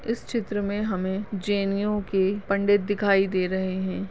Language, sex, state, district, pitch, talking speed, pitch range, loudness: Hindi, female, Goa, North and South Goa, 200 Hz, 160 wpm, 190-205 Hz, -25 LUFS